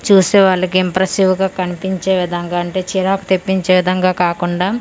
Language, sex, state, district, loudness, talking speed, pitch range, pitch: Telugu, female, Andhra Pradesh, Manyam, -15 LUFS, 135 wpm, 180-190 Hz, 185 Hz